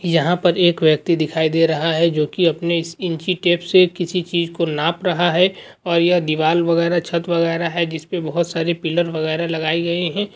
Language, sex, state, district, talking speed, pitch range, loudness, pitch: Hindi, male, Uttarakhand, Uttarkashi, 210 wpm, 165-175 Hz, -18 LUFS, 170 Hz